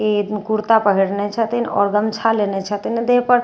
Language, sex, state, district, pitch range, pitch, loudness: Maithili, female, Bihar, Katihar, 205-230 Hz, 215 Hz, -18 LUFS